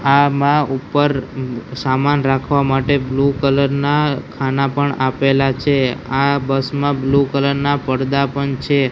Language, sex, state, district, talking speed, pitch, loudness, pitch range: Gujarati, male, Gujarat, Gandhinagar, 140 wpm, 140 Hz, -17 LUFS, 135-140 Hz